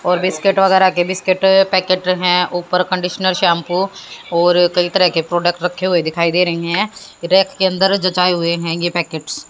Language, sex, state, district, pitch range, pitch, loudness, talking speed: Hindi, female, Haryana, Jhajjar, 175-190 Hz, 180 Hz, -15 LUFS, 190 wpm